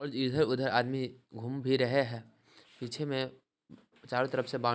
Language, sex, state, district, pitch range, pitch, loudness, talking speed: Hindi, male, Bihar, Sitamarhi, 125-135 Hz, 130 Hz, -32 LUFS, 165 wpm